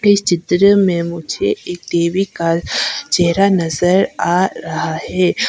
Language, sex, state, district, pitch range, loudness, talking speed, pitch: Hindi, female, Arunachal Pradesh, Papum Pare, 170-190 Hz, -16 LUFS, 130 wpm, 175 Hz